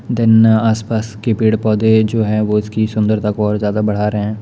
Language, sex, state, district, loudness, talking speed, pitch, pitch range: Hindi, male, Bihar, Darbhanga, -15 LUFS, 205 wpm, 110 Hz, 105-110 Hz